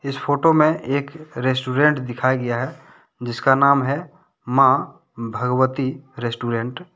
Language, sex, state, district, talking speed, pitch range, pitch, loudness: Hindi, male, Jharkhand, Deoghar, 130 wpm, 125-145 Hz, 135 Hz, -20 LUFS